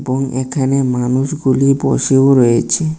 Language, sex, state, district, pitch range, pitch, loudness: Bengali, male, Tripura, West Tripura, 130-135 Hz, 135 Hz, -14 LUFS